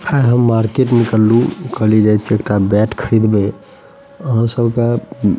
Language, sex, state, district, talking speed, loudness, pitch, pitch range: Maithili, male, Bihar, Madhepura, 155 wpm, -14 LUFS, 115 Hz, 110-120 Hz